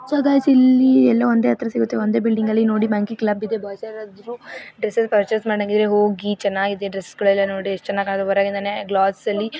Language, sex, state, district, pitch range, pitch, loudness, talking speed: Kannada, female, Karnataka, Mysore, 200-225 Hz, 210 Hz, -19 LUFS, 175 wpm